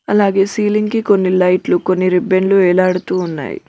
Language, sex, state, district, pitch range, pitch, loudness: Telugu, female, Telangana, Mahabubabad, 185-205 Hz, 185 Hz, -14 LUFS